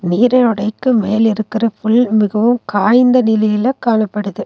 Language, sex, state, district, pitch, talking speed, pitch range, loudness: Tamil, female, Tamil Nadu, Nilgiris, 220 Hz, 105 wpm, 210-245 Hz, -14 LUFS